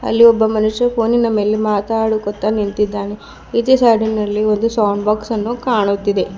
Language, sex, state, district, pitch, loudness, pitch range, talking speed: Kannada, female, Karnataka, Bidar, 215 Hz, -16 LUFS, 210-230 Hz, 130 wpm